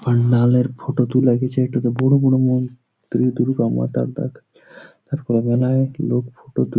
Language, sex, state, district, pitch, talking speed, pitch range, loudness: Bengali, male, West Bengal, Jalpaiguri, 125 Hz, 150 wpm, 120-130 Hz, -19 LUFS